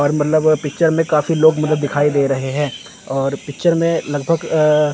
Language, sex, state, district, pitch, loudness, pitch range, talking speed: Hindi, male, Chandigarh, Chandigarh, 150 Hz, -17 LUFS, 145-160 Hz, 205 wpm